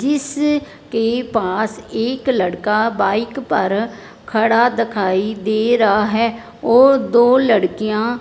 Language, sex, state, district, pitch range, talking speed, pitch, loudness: Hindi, male, Punjab, Fazilka, 215-240 Hz, 110 wpm, 225 Hz, -17 LUFS